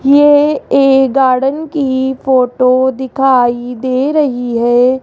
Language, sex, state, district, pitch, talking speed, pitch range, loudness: Hindi, female, Rajasthan, Jaipur, 265 Hz, 105 wpm, 255-275 Hz, -12 LUFS